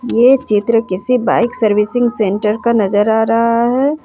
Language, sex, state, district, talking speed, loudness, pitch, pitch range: Hindi, female, Jharkhand, Ranchi, 165 wpm, -14 LUFS, 230 Hz, 210-245 Hz